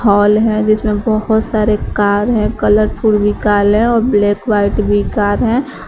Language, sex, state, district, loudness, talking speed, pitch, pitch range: Hindi, female, Uttar Pradesh, Shamli, -13 LUFS, 175 wpm, 215 Hz, 205-220 Hz